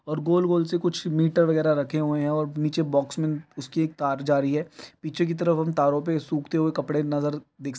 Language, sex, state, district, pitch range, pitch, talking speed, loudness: Hindi, male, Uttar Pradesh, Varanasi, 145-165 Hz, 155 Hz, 240 wpm, -25 LUFS